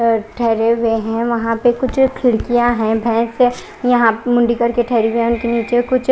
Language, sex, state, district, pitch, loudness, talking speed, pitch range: Hindi, female, Odisha, Khordha, 235 Hz, -16 LUFS, 205 wpm, 230-245 Hz